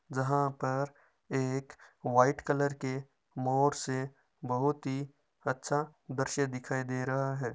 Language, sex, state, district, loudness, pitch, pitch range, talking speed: Marwari, male, Rajasthan, Nagaur, -33 LUFS, 135 Hz, 130-145 Hz, 125 wpm